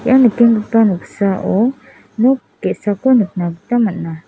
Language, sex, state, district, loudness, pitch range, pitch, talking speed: Garo, female, Meghalaya, South Garo Hills, -15 LUFS, 190-240 Hz, 220 Hz, 110 wpm